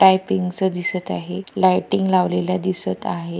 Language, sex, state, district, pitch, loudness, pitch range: Marathi, female, Maharashtra, Pune, 185 Hz, -20 LUFS, 180-190 Hz